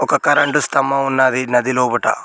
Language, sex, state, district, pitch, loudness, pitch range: Telugu, male, Telangana, Mahabubabad, 135 Hz, -15 LUFS, 125-145 Hz